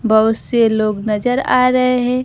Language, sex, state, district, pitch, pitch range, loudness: Hindi, female, Bihar, Kaimur, 240 Hz, 220-250 Hz, -15 LUFS